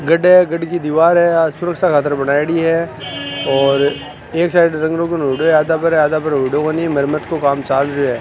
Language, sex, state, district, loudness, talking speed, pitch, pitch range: Hindi, male, Rajasthan, Nagaur, -15 LUFS, 210 wpm, 155 Hz, 145-165 Hz